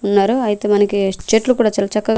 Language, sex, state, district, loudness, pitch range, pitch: Telugu, female, Andhra Pradesh, Manyam, -16 LUFS, 200-220 Hz, 205 Hz